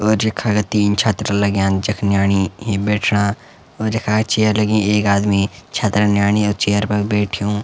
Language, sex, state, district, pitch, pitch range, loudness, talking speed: Garhwali, male, Uttarakhand, Uttarkashi, 105 Hz, 100-105 Hz, -17 LUFS, 175 wpm